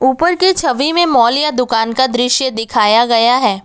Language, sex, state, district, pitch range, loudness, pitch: Hindi, female, Assam, Kamrup Metropolitan, 230-280 Hz, -12 LUFS, 250 Hz